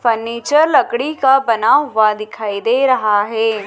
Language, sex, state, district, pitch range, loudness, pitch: Hindi, female, Madhya Pradesh, Dhar, 215-270 Hz, -15 LUFS, 230 Hz